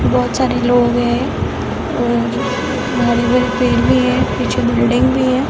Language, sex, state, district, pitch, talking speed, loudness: Hindi, female, Bihar, Sitamarhi, 240 Hz, 140 wpm, -15 LUFS